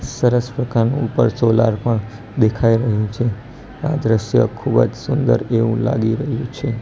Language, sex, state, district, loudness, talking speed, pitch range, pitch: Gujarati, male, Gujarat, Gandhinagar, -18 LUFS, 140 wpm, 110-125 Hz, 115 Hz